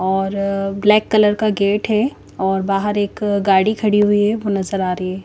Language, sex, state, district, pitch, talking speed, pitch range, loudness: Hindi, female, Chandigarh, Chandigarh, 200 Hz, 215 wpm, 195-210 Hz, -17 LUFS